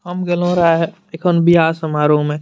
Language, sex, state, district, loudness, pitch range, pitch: Maithili, male, Bihar, Madhepura, -15 LUFS, 160-175 Hz, 165 Hz